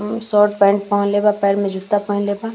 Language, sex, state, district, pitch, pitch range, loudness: Bhojpuri, female, Bihar, East Champaran, 205 Hz, 200-210 Hz, -17 LUFS